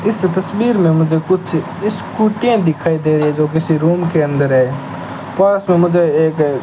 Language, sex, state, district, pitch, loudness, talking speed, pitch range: Hindi, male, Rajasthan, Bikaner, 165 Hz, -15 LUFS, 190 wpm, 150-190 Hz